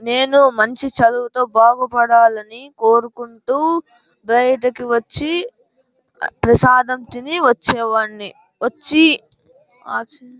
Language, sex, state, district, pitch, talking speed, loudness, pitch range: Telugu, male, Andhra Pradesh, Anantapur, 250 Hz, 75 wpm, -15 LUFS, 235-275 Hz